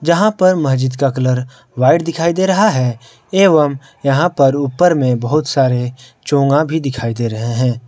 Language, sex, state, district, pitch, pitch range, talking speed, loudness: Hindi, male, Jharkhand, Ranchi, 135 Hz, 125-160 Hz, 175 wpm, -15 LUFS